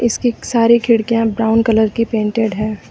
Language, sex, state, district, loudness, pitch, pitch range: Hindi, female, Uttar Pradesh, Lucknow, -15 LUFS, 225 Hz, 220-230 Hz